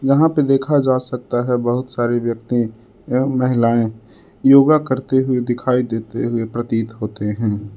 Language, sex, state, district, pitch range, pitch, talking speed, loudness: Hindi, male, Uttar Pradesh, Lucknow, 115-130 Hz, 120 Hz, 155 wpm, -18 LUFS